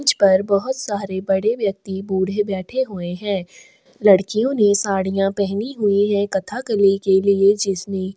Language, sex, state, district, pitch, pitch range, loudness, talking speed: Hindi, female, Chhattisgarh, Sukma, 200 Hz, 195-210 Hz, -19 LUFS, 155 wpm